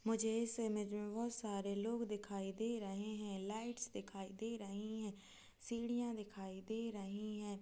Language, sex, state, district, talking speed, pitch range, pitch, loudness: Hindi, female, Chhattisgarh, Kabirdham, 165 wpm, 200-225 Hz, 210 Hz, -44 LUFS